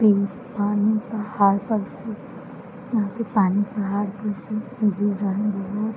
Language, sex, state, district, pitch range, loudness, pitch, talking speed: Hindi, female, Bihar, Darbhanga, 200-220 Hz, -23 LUFS, 210 Hz, 140 wpm